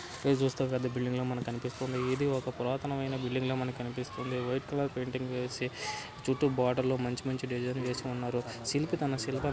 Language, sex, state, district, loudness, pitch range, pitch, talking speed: Telugu, male, Andhra Pradesh, Guntur, -33 LUFS, 125-135 Hz, 130 Hz, 175 wpm